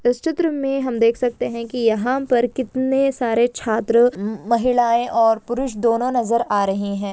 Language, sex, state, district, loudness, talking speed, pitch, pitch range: Hindi, female, Jharkhand, Sahebganj, -19 LUFS, 185 wpm, 240 Hz, 230-255 Hz